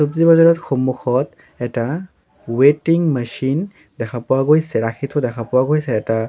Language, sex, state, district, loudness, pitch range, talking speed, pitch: Assamese, male, Assam, Sonitpur, -17 LUFS, 120-155 Hz, 135 wpm, 130 Hz